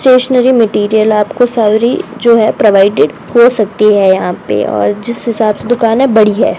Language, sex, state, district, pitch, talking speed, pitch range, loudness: Hindi, female, Rajasthan, Bikaner, 220 Hz, 180 wpm, 205-235 Hz, -10 LUFS